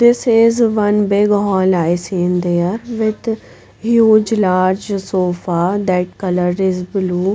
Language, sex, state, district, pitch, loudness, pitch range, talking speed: English, female, Punjab, Pathankot, 195 Hz, -15 LUFS, 180-215 Hz, 130 wpm